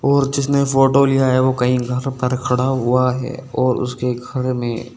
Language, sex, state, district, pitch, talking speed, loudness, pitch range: Hindi, male, Uttar Pradesh, Saharanpur, 130 Hz, 195 wpm, -18 LUFS, 125-135 Hz